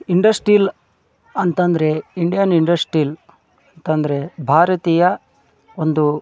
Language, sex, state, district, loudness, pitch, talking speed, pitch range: Kannada, male, Karnataka, Dharwad, -17 LUFS, 170 Hz, 85 wpm, 155-180 Hz